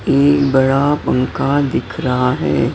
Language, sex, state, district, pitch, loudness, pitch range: Hindi, female, Maharashtra, Mumbai Suburban, 135 Hz, -15 LUFS, 130-145 Hz